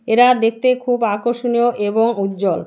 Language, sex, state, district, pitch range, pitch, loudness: Bengali, female, West Bengal, Alipurduar, 215-245 Hz, 235 Hz, -17 LUFS